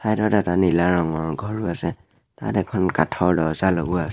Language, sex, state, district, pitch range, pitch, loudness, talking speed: Assamese, male, Assam, Sonitpur, 85-100 Hz, 90 Hz, -22 LUFS, 175 wpm